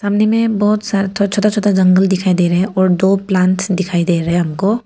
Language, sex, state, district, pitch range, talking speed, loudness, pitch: Hindi, female, Arunachal Pradesh, Papum Pare, 185-205 Hz, 245 wpm, -14 LUFS, 190 Hz